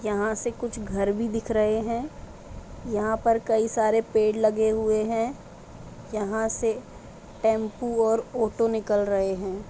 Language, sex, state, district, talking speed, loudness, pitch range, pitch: Hindi, female, Uttar Pradesh, Budaun, 165 wpm, -25 LUFS, 215-225 Hz, 220 Hz